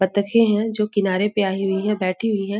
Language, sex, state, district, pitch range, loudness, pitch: Hindi, female, Chhattisgarh, Raigarh, 195-210 Hz, -20 LUFS, 200 Hz